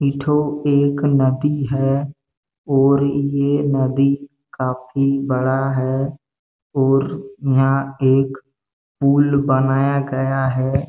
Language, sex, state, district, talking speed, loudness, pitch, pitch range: Hindi, male, Chhattisgarh, Bastar, 100 wpm, -18 LUFS, 135 Hz, 135-140 Hz